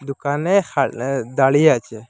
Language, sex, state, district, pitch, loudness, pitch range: Bengali, male, Assam, Hailakandi, 135 Hz, -18 LUFS, 125-145 Hz